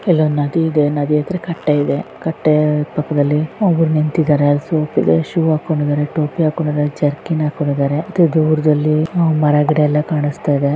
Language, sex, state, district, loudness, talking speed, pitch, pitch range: Kannada, female, Karnataka, Raichur, -16 LUFS, 110 wpm, 150 Hz, 150-160 Hz